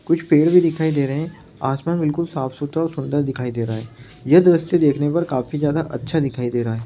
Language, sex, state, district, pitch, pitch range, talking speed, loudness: Hindi, male, West Bengal, Jalpaiguri, 145 Hz, 130-165 Hz, 235 wpm, -19 LUFS